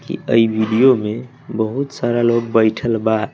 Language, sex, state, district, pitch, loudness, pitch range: Hindi, male, Bihar, West Champaran, 115 Hz, -17 LUFS, 110-120 Hz